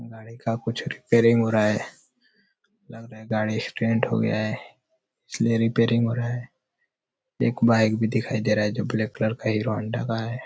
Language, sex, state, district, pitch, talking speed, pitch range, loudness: Hindi, male, Uttar Pradesh, Ghazipur, 115 Hz, 190 wpm, 110-115 Hz, -24 LUFS